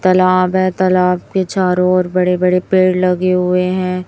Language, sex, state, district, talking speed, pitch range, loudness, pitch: Hindi, male, Chhattisgarh, Raipur, 175 wpm, 180-185 Hz, -14 LUFS, 185 Hz